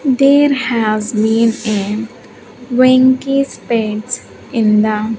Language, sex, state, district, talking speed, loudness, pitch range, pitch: English, female, Andhra Pradesh, Sri Satya Sai, 90 wpm, -14 LUFS, 215-255 Hz, 230 Hz